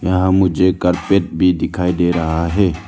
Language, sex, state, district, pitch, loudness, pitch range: Hindi, male, Arunachal Pradesh, Lower Dibang Valley, 90 Hz, -16 LUFS, 85-95 Hz